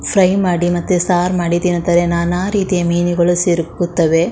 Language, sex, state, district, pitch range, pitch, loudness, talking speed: Kannada, female, Karnataka, Shimoga, 175-180 Hz, 175 Hz, -15 LUFS, 125 wpm